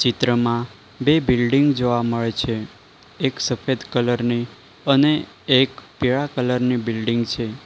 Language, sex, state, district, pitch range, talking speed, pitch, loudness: Gujarati, male, Gujarat, Valsad, 115-135 Hz, 135 wpm, 125 Hz, -20 LUFS